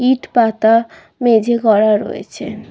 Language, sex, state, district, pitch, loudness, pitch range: Bengali, female, West Bengal, Kolkata, 230 Hz, -14 LUFS, 220-245 Hz